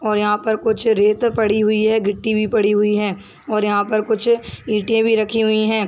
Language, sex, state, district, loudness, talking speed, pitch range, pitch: Hindi, female, Chhattisgarh, Bilaspur, -18 LUFS, 225 wpm, 210-220 Hz, 215 Hz